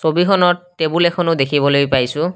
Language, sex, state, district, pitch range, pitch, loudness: Assamese, male, Assam, Kamrup Metropolitan, 140-175 Hz, 165 Hz, -15 LUFS